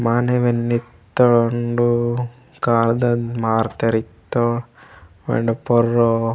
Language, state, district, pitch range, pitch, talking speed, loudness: Gondi, Chhattisgarh, Sukma, 115-120 Hz, 120 Hz, 75 wpm, -19 LUFS